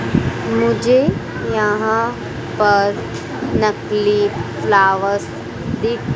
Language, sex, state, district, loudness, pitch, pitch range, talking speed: Hindi, female, Madhya Pradesh, Dhar, -17 LUFS, 200 Hz, 130-210 Hz, 60 wpm